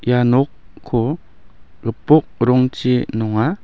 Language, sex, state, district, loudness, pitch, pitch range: Garo, male, Meghalaya, West Garo Hills, -18 LUFS, 120 Hz, 110-130 Hz